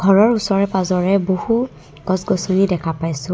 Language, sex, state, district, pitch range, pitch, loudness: Assamese, female, Assam, Kamrup Metropolitan, 180-195 Hz, 190 Hz, -18 LUFS